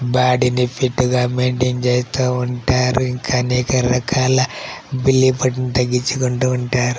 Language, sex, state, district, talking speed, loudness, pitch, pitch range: Telugu, male, Andhra Pradesh, Chittoor, 75 wpm, -17 LUFS, 125 Hz, 125-130 Hz